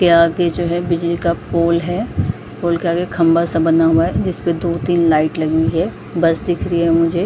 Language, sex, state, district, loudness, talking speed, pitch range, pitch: Hindi, female, Jharkhand, Jamtara, -16 LUFS, 215 wpm, 165-175 Hz, 170 Hz